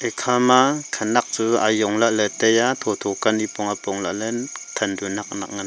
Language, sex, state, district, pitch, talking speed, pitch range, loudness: Wancho, male, Arunachal Pradesh, Longding, 110 Hz, 210 wpm, 105-120 Hz, -21 LUFS